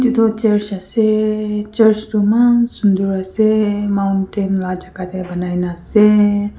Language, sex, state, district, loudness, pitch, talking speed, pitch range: Nagamese, female, Nagaland, Kohima, -16 LUFS, 205 Hz, 145 wpm, 190-215 Hz